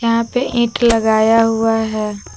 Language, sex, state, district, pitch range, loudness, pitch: Hindi, female, Jharkhand, Palamu, 220-235 Hz, -15 LUFS, 225 Hz